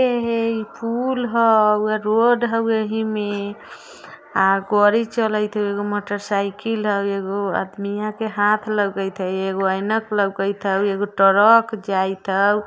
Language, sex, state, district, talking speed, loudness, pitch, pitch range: Bajjika, female, Bihar, Vaishali, 130 wpm, -20 LUFS, 210 Hz, 200-220 Hz